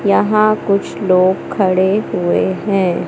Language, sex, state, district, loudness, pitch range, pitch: Hindi, male, Madhya Pradesh, Katni, -15 LUFS, 185-200 Hz, 190 Hz